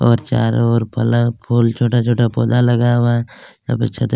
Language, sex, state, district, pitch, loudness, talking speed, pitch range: Hindi, male, Chhattisgarh, Kabirdham, 120 Hz, -16 LUFS, 185 wpm, 115-120 Hz